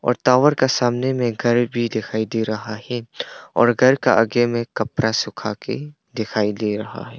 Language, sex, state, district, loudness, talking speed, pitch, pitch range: Hindi, male, Arunachal Pradesh, Longding, -20 LUFS, 190 wpm, 120 Hz, 110-125 Hz